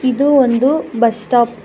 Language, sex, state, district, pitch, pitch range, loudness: Kannada, female, Karnataka, Bangalore, 250 Hz, 235-270 Hz, -14 LUFS